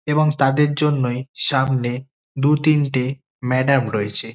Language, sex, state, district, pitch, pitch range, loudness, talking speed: Bengali, male, West Bengal, Kolkata, 135 Hz, 125-150 Hz, -19 LUFS, 95 wpm